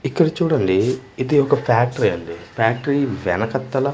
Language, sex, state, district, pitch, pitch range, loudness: Telugu, male, Andhra Pradesh, Manyam, 130 Hz, 115-140 Hz, -19 LUFS